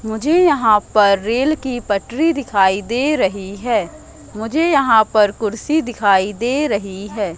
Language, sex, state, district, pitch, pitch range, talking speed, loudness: Hindi, female, Madhya Pradesh, Katni, 225 Hz, 205-280 Hz, 145 wpm, -16 LUFS